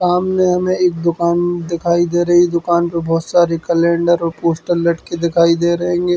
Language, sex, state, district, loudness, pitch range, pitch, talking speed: Bundeli, male, Uttar Pradesh, Hamirpur, -15 LUFS, 170-175 Hz, 170 Hz, 205 wpm